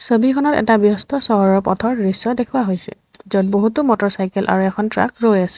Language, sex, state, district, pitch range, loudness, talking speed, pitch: Assamese, female, Assam, Sonitpur, 195-235 Hz, -16 LUFS, 170 wpm, 215 Hz